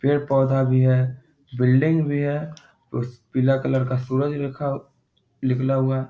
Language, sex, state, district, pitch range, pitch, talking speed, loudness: Hindi, male, Bihar, Muzaffarpur, 130-145 Hz, 135 Hz, 150 wpm, -22 LUFS